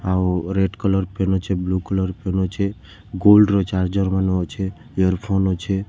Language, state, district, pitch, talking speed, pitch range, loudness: Sambalpuri, Odisha, Sambalpur, 95 Hz, 165 wpm, 95-100 Hz, -20 LUFS